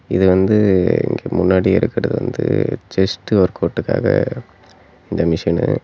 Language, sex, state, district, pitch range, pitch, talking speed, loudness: Tamil, male, Tamil Nadu, Namakkal, 90-100 Hz, 95 Hz, 100 wpm, -17 LUFS